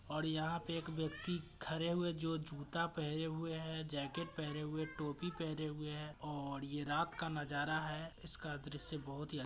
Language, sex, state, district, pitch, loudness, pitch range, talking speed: Hindi, male, Bihar, Gopalganj, 155 Hz, -42 LUFS, 150-165 Hz, 195 wpm